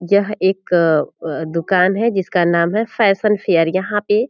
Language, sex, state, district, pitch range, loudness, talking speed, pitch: Hindi, female, Bihar, Purnia, 170-210 Hz, -16 LUFS, 180 wpm, 190 Hz